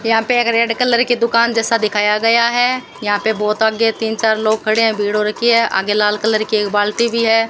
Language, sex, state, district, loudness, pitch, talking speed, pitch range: Hindi, female, Rajasthan, Bikaner, -15 LUFS, 225 Hz, 255 wpm, 215-230 Hz